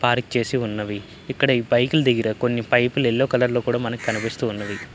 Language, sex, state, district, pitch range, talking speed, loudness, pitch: Telugu, male, Andhra Pradesh, Guntur, 115-125 Hz, 170 wpm, -21 LUFS, 120 Hz